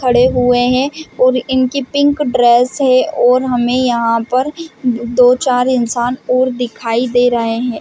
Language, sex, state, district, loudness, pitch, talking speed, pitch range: Hindi, female, Chhattisgarh, Bastar, -13 LUFS, 250 Hz, 155 wpm, 245-255 Hz